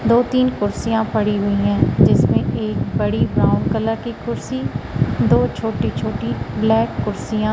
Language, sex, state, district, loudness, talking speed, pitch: Hindi, female, Madhya Pradesh, Katni, -19 LUFS, 145 wpm, 200 Hz